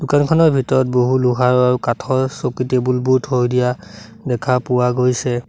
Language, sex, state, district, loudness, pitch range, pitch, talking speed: Assamese, male, Assam, Sonitpur, -17 LUFS, 125-130 Hz, 125 Hz, 155 wpm